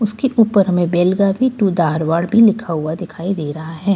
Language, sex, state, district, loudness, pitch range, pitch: Hindi, female, Bihar, Katihar, -16 LUFS, 165-210 Hz, 185 Hz